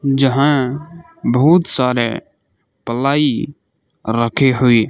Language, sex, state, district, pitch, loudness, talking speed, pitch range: Hindi, male, Rajasthan, Bikaner, 135 Hz, -15 LUFS, 75 wpm, 120-145 Hz